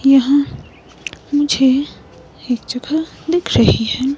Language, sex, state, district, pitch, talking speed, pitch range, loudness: Hindi, female, Himachal Pradesh, Shimla, 275 Hz, 100 wpm, 260-290 Hz, -16 LUFS